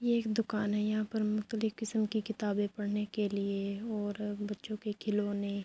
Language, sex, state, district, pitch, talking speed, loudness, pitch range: Urdu, female, Andhra Pradesh, Anantapur, 210 Hz, 180 wpm, -34 LUFS, 205-220 Hz